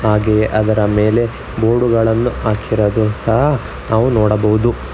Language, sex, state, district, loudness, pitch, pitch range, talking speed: Kannada, male, Karnataka, Bangalore, -15 LUFS, 110 Hz, 105-115 Hz, 110 wpm